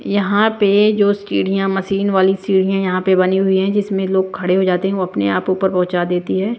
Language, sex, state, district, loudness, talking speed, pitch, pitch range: Hindi, female, Bihar, West Champaran, -16 LUFS, 225 wpm, 190 Hz, 185-200 Hz